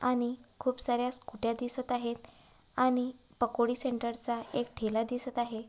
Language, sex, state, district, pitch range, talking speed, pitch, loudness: Marathi, female, Maharashtra, Chandrapur, 235-255 Hz, 135 wpm, 245 Hz, -33 LUFS